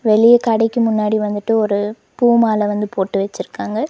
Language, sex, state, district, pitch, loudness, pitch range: Tamil, female, Tamil Nadu, Nilgiris, 215 Hz, -16 LUFS, 210-230 Hz